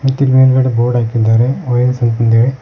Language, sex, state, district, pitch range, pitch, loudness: Kannada, male, Karnataka, Koppal, 115-130 Hz, 125 Hz, -12 LUFS